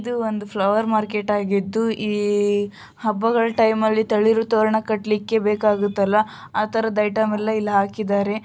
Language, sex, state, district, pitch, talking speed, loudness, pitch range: Kannada, female, Karnataka, Shimoga, 215 Hz, 135 wpm, -20 LUFS, 210-220 Hz